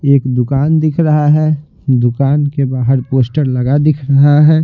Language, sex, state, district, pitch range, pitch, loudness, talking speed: Hindi, male, Bihar, Patna, 130-150 Hz, 140 Hz, -12 LUFS, 170 wpm